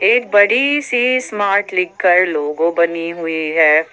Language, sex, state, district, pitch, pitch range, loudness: Hindi, female, Jharkhand, Ranchi, 180 Hz, 165-215 Hz, -15 LUFS